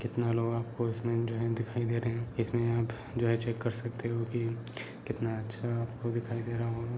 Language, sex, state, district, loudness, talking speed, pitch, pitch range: Hindi, male, Uttar Pradesh, Gorakhpur, -33 LUFS, 205 wpm, 115 Hz, 115-120 Hz